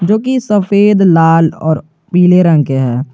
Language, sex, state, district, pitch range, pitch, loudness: Hindi, male, Jharkhand, Garhwa, 155-205 Hz, 175 Hz, -10 LUFS